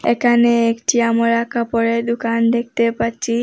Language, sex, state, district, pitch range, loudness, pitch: Bengali, female, Assam, Hailakandi, 230-235 Hz, -17 LUFS, 230 Hz